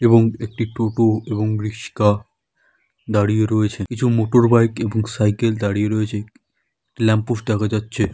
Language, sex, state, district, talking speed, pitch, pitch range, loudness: Bengali, male, West Bengal, Dakshin Dinajpur, 125 wpm, 110 Hz, 105-115 Hz, -19 LUFS